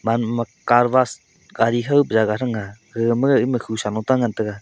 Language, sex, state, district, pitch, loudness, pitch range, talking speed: Wancho, male, Arunachal Pradesh, Longding, 115 Hz, -20 LUFS, 110-120 Hz, 180 wpm